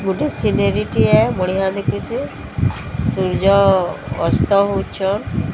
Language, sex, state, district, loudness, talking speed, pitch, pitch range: Odia, female, Odisha, Sambalpur, -17 LUFS, 85 wpm, 190 Hz, 180-200 Hz